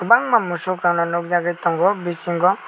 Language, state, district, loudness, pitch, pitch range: Kokborok, Tripura, West Tripura, -19 LUFS, 175 Hz, 170-185 Hz